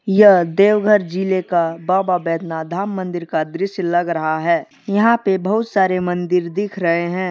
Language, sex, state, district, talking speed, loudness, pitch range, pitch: Hindi, male, Jharkhand, Deoghar, 170 wpm, -17 LUFS, 170-200 Hz, 185 Hz